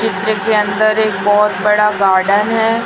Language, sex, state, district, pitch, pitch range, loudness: Hindi, female, Chhattisgarh, Raipur, 210 Hz, 205-220 Hz, -13 LUFS